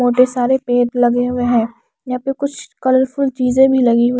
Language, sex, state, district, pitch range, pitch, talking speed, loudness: Hindi, female, Punjab, Kapurthala, 245-260 Hz, 250 Hz, 215 wpm, -16 LUFS